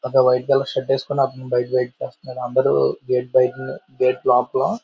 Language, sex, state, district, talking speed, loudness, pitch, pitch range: Telugu, male, Andhra Pradesh, Visakhapatnam, 150 wpm, -20 LUFS, 130 Hz, 125-135 Hz